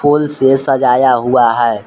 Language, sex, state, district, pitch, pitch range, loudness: Hindi, male, Jharkhand, Palamu, 135 Hz, 120-140 Hz, -11 LUFS